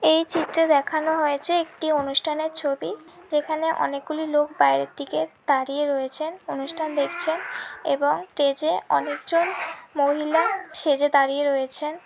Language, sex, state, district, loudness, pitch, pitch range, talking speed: Bengali, female, West Bengal, Malda, -24 LUFS, 305 Hz, 280-325 Hz, 125 wpm